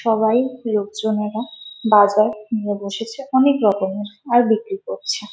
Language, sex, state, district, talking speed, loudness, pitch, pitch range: Bengali, female, West Bengal, Malda, 125 wpm, -19 LUFS, 220 Hz, 205-240 Hz